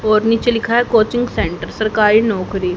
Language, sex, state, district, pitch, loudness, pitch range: Hindi, female, Haryana, Jhajjar, 220 Hz, -15 LUFS, 215-230 Hz